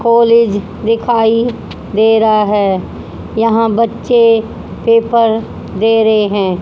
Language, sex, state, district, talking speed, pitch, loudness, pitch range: Hindi, female, Haryana, Jhajjar, 100 wpm, 225 Hz, -12 LUFS, 215-230 Hz